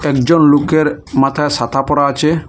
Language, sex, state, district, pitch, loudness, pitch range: Bengali, male, Assam, Hailakandi, 145 Hz, -13 LUFS, 135-155 Hz